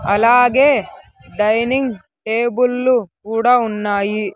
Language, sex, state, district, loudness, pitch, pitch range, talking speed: Telugu, male, Andhra Pradesh, Sri Satya Sai, -16 LUFS, 230 Hz, 210-245 Hz, 70 wpm